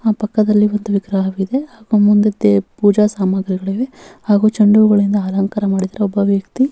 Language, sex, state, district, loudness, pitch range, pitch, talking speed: Kannada, female, Karnataka, Bellary, -15 LUFS, 195-215 Hz, 205 Hz, 150 wpm